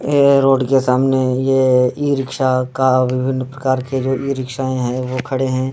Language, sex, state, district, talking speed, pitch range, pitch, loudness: Hindi, male, Bihar, Darbhanga, 180 wpm, 130-135 Hz, 130 Hz, -16 LUFS